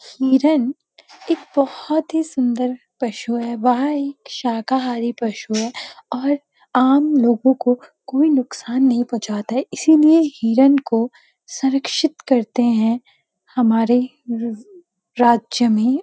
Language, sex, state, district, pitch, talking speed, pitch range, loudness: Hindi, female, Uttarakhand, Uttarkashi, 250 Hz, 110 wpm, 235-280 Hz, -18 LUFS